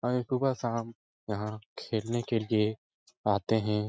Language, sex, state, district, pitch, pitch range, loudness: Hindi, male, Bihar, Lakhisarai, 110 Hz, 105-120 Hz, -31 LUFS